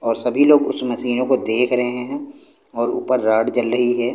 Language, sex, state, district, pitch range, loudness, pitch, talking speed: Hindi, male, Punjab, Pathankot, 120-130 Hz, -18 LUFS, 125 Hz, 215 wpm